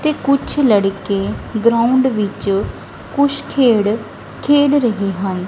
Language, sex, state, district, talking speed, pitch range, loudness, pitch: Punjabi, female, Punjab, Kapurthala, 110 wpm, 200-275 Hz, -16 LUFS, 230 Hz